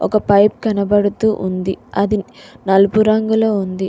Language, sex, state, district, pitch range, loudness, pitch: Telugu, female, Telangana, Mahabubabad, 195-215 Hz, -15 LUFS, 205 Hz